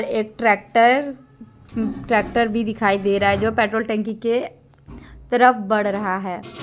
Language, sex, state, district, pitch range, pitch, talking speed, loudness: Hindi, female, Jharkhand, Deoghar, 205-235 Hz, 220 Hz, 145 wpm, -19 LUFS